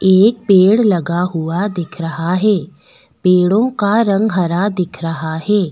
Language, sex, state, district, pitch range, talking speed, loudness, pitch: Hindi, female, Delhi, New Delhi, 170-205 Hz, 145 wpm, -15 LUFS, 185 Hz